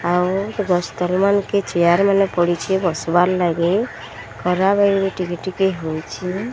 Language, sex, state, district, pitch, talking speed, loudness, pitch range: Odia, female, Odisha, Sambalpur, 180 Hz, 130 wpm, -19 LUFS, 175-195 Hz